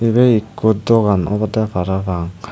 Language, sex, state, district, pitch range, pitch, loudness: Chakma, male, Tripura, Dhalai, 95-110 Hz, 105 Hz, -16 LUFS